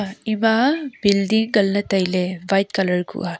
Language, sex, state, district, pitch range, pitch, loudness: Wancho, female, Arunachal Pradesh, Longding, 185-220 Hz, 200 Hz, -20 LUFS